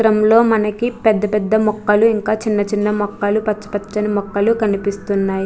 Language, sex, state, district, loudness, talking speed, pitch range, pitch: Telugu, female, Andhra Pradesh, Chittoor, -17 LUFS, 165 wpm, 205-220 Hz, 210 Hz